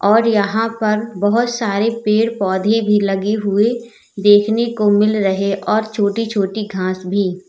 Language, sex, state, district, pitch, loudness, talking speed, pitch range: Hindi, female, Uttar Pradesh, Lalitpur, 210 Hz, -16 LUFS, 150 wpm, 200-225 Hz